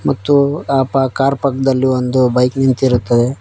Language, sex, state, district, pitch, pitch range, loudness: Kannada, male, Karnataka, Koppal, 130 Hz, 125-135 Hz, -14 LUFS